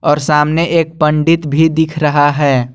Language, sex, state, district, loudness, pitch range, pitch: Hindi, male, Jharkhand, Garhwa, -12 LUFS, 145-160 Hz, 150 Hz